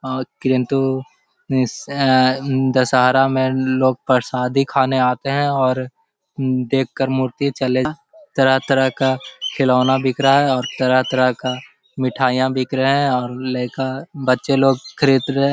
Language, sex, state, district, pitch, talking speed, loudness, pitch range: Hindi, male, Bihar, Jahanabad, 130 Hz, 140 wpm, -18 LUFS, 130-135 Hz